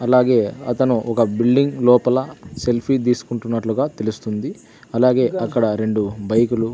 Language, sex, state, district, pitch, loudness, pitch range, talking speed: Telugu, male, Andhra Pradesh, Sri Satya Sai, 120 Hz, -19 LUFS, 110-125 Hz, 115 wpm